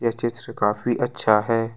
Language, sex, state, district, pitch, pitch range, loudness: Hindi, male, Jharkhand, Deoghar, 115 Hz, 110-120 Hz, -22 LUFS